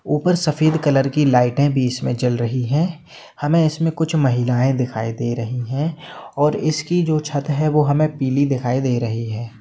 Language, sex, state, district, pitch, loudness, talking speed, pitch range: Hindi, male, Jharkhand, Jamtara, 140 Hz, -19 LUFS, 175 wpm, 125-155 Hz